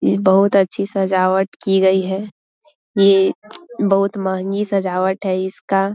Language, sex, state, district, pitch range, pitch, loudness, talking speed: Hindi, female, Bihar, Muzaffarpur, 190-195 Hz, 195 Hz, -17 LUFS, 140 wpm